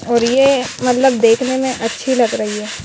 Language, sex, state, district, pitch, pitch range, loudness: Hindi, female, Madhya Pradesh, Bhopal, 250 Hz, 230-260 Hz, -15 LUFS